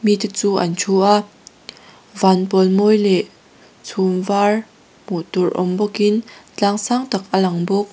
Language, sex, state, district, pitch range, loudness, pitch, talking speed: Mizo, female, Mizoram, Aizawl, 190-210 Hz, -17 LUFS, 200 Hz, 120 wpm